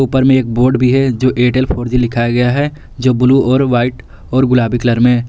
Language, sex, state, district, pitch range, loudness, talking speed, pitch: Hindi, male, Jharkhand, Garhwa, 120-130 Hz, -13 LUFS, 240 wpm, 125 Hz